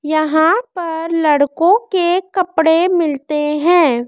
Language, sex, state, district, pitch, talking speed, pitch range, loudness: Hindi, female, Madhya Pradesh, Dhar, 325 Hz, 105 wpm, 305-355 Hz, -15 LUFS